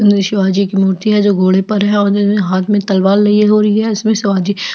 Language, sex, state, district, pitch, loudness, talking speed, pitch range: Hindi, female, Chhattisgarh, Jashpur, 205 Hz, -12 LUFS, 255 wpm, 195-210 Hz